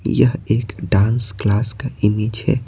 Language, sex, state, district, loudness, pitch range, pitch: Hindi, male, Bihar, Patna, -19 LUFS, 105-120 Hz, 110 Hz